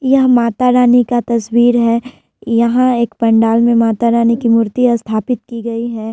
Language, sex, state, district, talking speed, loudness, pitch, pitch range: Hindi, female, Bihar, Vaishali, 175 wpm, -13 LUFS, 235 Hz, 230-245 Hz